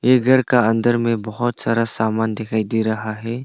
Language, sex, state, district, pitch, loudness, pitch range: Hindi, male, Arunachal Pradesh, Longding, 115 Hz, -19 LUFS, 110-120 Hz